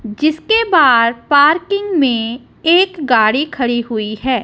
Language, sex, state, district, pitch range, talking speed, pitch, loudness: Hindi, female, Punjab, Kapurthala, 235-335 Hz, 120 wpm, 275 Hz, -14 LUFS